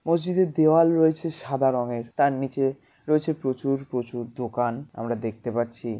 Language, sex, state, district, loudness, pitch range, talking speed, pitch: Bengali, male, West Bengal, Malda, -25 LUFS, 120-155 Hz, 140 wpm, 135 Hz